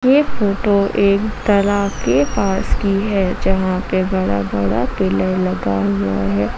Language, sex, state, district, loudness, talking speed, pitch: Hindi, female, Jharkhand, Ranchi, -17 LUFS, 145 wpm, 190 Hz